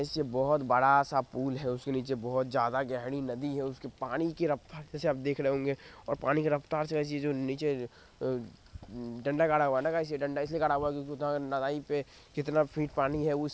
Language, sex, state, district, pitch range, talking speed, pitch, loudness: Hindi, male, Bihar, Madhepura, 130-150 Hz, 200 wpm, 140 Hz, -32 LUFS